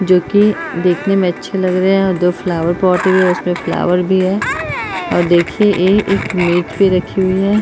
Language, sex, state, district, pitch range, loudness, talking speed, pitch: Hindi, female, Uttar Pradesh, Etah, 180-195 Hz, -14 LUFS, 210 wpm, 185 Hz